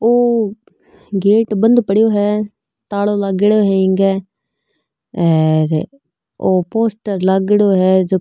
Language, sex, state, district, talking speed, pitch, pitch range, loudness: Marwari, female, Rajasthan, Nagaur, 110 wpm, 200 Hz, 190-215 Hz, -15 LUFS